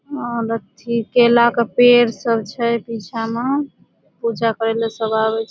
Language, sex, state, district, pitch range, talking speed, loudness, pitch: Maithili, female, Bihar, Supaul, 225-240 Hz, 165 wpm, -18 LUFS, 230 Hz